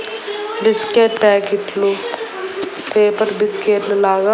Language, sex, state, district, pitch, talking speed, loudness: Telugu, female, Andhra Pradesh, Annamaya, 215 Hz, 95 wpm, -17 LUFS